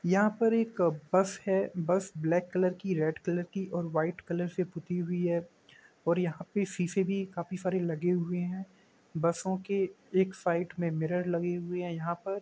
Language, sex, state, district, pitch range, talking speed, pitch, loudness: Hindi, male, Bihar, East Champaran, 170-190 Hz, 200 wpm, 180 Hz, -31 LUFS